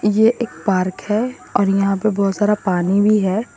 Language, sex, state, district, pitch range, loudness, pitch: Hindi, female, Assam, Sonitpur, 195-215 Hz, -18 LUFS, 205 Hz